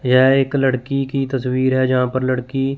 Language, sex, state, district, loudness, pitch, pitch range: Hindi, male, Chandigarh, Chandigarh, -18 LUFS, 130 Hz, 130-135 Hz